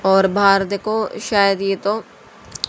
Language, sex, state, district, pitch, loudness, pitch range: Hindi, female, Haryana, Jhajjar, 200 Hz, -18 LUFS, 195-220 Hz